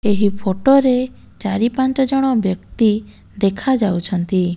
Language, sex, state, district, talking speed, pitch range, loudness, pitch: Odia, female, Odisha, Malkangiri, 105 wpm, 195-260 Hz, -17 LUFS, 210 Hz